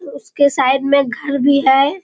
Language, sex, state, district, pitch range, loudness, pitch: Hindi, female, Bihar, Kishanganj, 270-280 Hz, -14 LUFS, 280 Hz